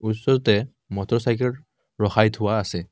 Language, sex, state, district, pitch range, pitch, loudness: Assamese, male, Assam, Kamrup Metropolitan, 105-120 Hz, 110 Hz, -22 LUFS